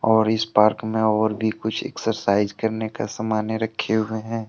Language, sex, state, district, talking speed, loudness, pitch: Hindi, male, Jharkhand, Deoghar, 185 wpm, -22 LUFS, 110 Hz